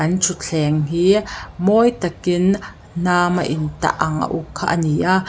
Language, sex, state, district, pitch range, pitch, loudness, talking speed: Mizo, female, Mizoram, Aizawl, 160-185 Hz, 175 Hz, -18 LUFS, 160 wpm